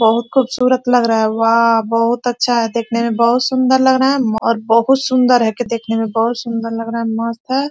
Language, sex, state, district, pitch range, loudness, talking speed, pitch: Hindi, female, Chhattisgarh, Korba, 230-250 Hz, -15 LUFS, 240 wpm, 235 Hz